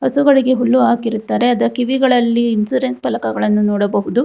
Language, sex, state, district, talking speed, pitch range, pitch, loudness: Kannada, female, Karnataka, Bangalore, 115 wpm, 225-255 Hz, 245 Hz, -15 LUFS